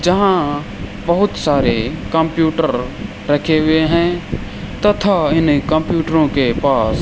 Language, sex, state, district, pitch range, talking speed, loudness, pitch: Hindi, male, Rajasthan, Bikaner, 155-175 Hz, 110 wpm, -16 LUFS, 160 Hz